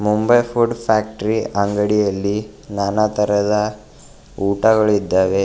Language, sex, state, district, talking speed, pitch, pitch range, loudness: Kannada, male, Karnataka, Bidar, 75 wpm, 105 Hz, 100-110 Hz, -18 LUFS